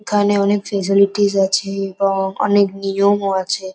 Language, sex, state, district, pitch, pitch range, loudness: Bengali, female, West Bengal, Kolkata, 195 Hz, 195-205 Hz, -17 LUFS